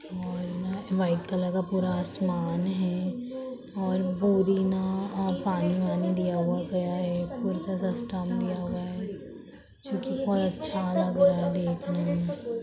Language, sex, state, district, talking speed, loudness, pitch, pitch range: Hindi, female, Bihar, Lakhisarai, 160 wpm, -29 LUFS, 185 Hz, 180-190 Hz